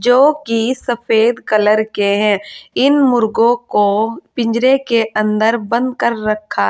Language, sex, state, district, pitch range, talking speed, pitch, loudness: Hindi, female, Uttar Pradesh, Saharanpur, 215-245 Hz, 145 wpm, 230 Hz, -15 LUFS